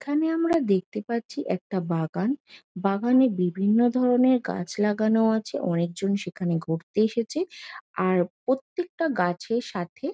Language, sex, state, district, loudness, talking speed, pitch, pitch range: Bengali, female, West Bengal, Jhargram, -25 LUFS, 130 wpm, 215 Hz, 180-255 Hz